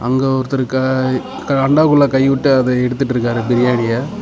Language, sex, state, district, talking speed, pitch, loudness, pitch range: Tamil, male, Tamil Nadu, Namakkal, 130 wpm, 130 Hz, -15 LUFS, 125-135 Hz